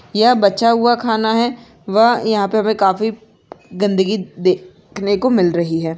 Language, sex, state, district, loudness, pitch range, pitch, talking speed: Hindi, female, Maharashtra, Aurangabad, -16 LUFS, 190-230 Hz, 210 Hz, 170 wpm